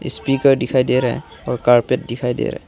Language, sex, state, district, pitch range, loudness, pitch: Hindi, male, Arunachal Pradesh, Longding, 120-135 Hz, -18 LUFS, 125 Hz